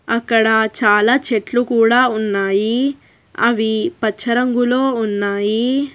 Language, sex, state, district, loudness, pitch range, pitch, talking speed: Telugu, female, Telangana, Hyderabad, -16 LUFS, 220-245 Hz, 230 Hz, 90 wpm